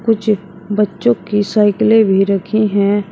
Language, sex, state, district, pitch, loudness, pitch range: Hindi, female, Uttar Pradesh, Shamli, 205 Hz, -14 LUFS, 200-215 Hz